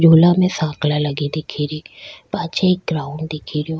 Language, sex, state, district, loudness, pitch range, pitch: Rajasthani, female, Rajasthan, Churu, -19 LUFS, 150-165 Hz, 155 Hz